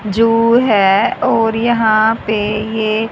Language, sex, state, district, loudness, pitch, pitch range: Hindi, male, Haryana, Charkhi Dadri, -13 LUFS, 220 Hz, 215-230 Hz